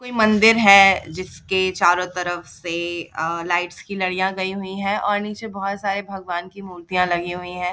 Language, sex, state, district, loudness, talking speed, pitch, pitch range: Hindi, female, Bihar, Jahanabad, -20 LUFS, 195 wpm, 185 Hz, 175-200 Hz